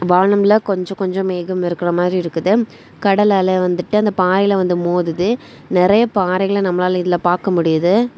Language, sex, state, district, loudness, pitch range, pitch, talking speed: Tamil, female, Tamil Nadu, Kanyakumari, -16 LUFS, 180-200 Hz, 185 Hz, 145 wpm